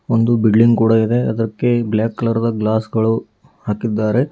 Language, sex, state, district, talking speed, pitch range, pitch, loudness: Kannada, female, Karnataka, Bidar, 150 wpm, 110-115 Hz, 115 Hz, -16 LUFS